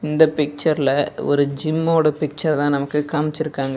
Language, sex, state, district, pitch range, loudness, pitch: Tamil, male, Tamil Nadu, Nilgiris, 145-155 Hz, -19 LUFS, 150 Hz